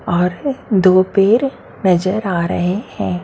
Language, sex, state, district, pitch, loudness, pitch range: Hindi, female, Maharashtra, Mumbai Suburban, 185 Hz, -16 LUFS, 180-210 Hz